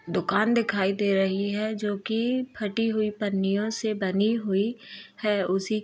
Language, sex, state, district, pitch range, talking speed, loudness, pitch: Hindi, female, Bihar, Gopalganj, 200-225 Hz, 165 wpm, -26 LUFS, 210 Hz